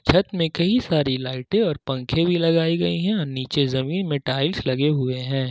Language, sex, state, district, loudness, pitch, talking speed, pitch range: Hindi, male, Jharkhand, Ranchi, -22 LUFS, 145 Hz, 195 wpm, 130-170 Hz